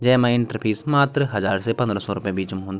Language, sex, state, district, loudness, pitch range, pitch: Garhwali, male, Uttarakhand, Tehri Garhwal, -22 LUFS, 100-125 Hz, 110 Hz